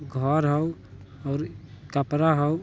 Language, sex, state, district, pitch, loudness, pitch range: Bajjika, male, Bihar, Vaishali, 145 Hz, -25 LUFS, 130-155 Hz